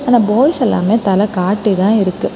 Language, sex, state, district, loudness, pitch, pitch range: Tamil, female, Tamil Nadu, Kanyakumari, -13 LUFS, 210 Hz, 195-235 Hz